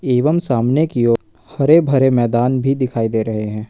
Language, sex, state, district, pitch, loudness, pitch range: Hindi, male, Jharkhand, Ranchi, 125 Hz, -16 LUFS, 115-135 Hz